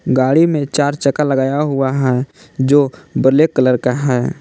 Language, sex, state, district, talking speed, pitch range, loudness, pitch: Hindi, male, Jharkhand, Palamu, 165 wpm, 130-145 Hz, -15 LUFS, 135 Hz